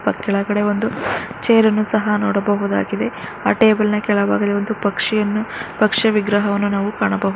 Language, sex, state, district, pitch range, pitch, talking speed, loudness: Kannada, female, Karnataka, Mysore, 205-215 Hz, 210 Hz, 140 wpm, -18 LUFS